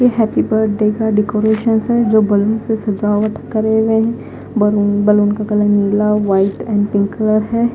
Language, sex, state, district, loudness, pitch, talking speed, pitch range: Hindi, female, Punjab, Fazilka, -15 LUFS, 215 Hz, 170 wpm, 205-220 Hz